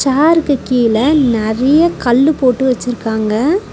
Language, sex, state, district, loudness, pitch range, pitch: Tamil, female, Tamil Nadu, Nilgiris, -13 LUFS, 235-295 Hz, 255 Hz